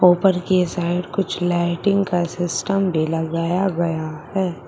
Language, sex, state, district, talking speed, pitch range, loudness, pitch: Hindi, female, Uttar Pradesh, Shamli, 140 wpm, 170-190 Hz, -20 LUFS, 175 Hz